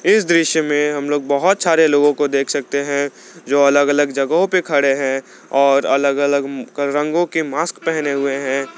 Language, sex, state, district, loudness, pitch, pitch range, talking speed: Hindi, male, Jharkhand, Garhwa, -17 LUFS, 145 Hz, 140-160 Hz, 190 wpm